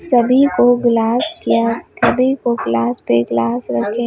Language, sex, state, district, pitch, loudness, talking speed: Hindi, female, Bihar, Katihar, 235 Hz, -15 LUFS, 145 wpm